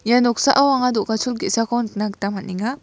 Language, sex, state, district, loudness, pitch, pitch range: Garo, female, Meghalaya, West Garo Hills, -19 LUFS, 235 Hz, 210-250 Hz